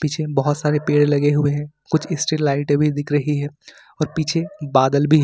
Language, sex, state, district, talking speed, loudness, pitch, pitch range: Hindi, male, Jharkhand, Ranchi, 215 wpm, -19 LUFS, 150 Hz, 145-155 Hz